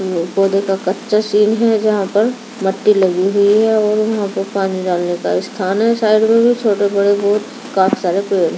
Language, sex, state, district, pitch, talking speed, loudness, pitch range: Hindi, female, Delhi, New Delhi, 200 Hz, 205 wpm, -15 LUFS, 190-215 Hz